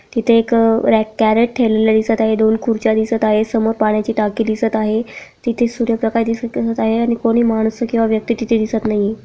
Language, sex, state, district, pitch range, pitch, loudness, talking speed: Marathi, female, Maharashtra, Pune, 220-230 Hz, 225 Hz, -16 LUFS, 175 wpm